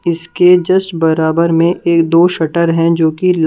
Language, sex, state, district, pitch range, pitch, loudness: Hindi, female, Punjab, Kapurthala, 165-175 Hz, 170 Hz, -12 LUFS